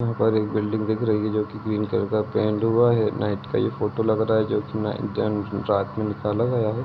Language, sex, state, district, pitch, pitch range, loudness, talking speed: Hindi, male, Jharkhand, Jamtara, 110 Hz, 105-110 Hz, -23 LUFS, 245 wpm